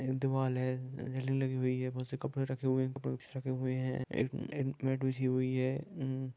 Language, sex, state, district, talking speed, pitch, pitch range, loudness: Hindi, male, Jharkhand, Sahebganj, 180 wpm, 130 Hz, 130-135 Hz, -35 LUFS